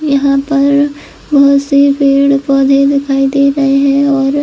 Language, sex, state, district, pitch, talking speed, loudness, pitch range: Hindi, female, Chhattisgarh, Bilaspur, 280 Hz, 135 wpm, -10 LUFS, 275-280 Hz